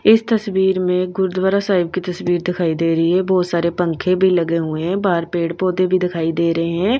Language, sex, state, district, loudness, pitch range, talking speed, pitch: Hindi, female, Bihar, Patna, -18 LUFS, 170-190 Hz, 215 wpm, 180 Hz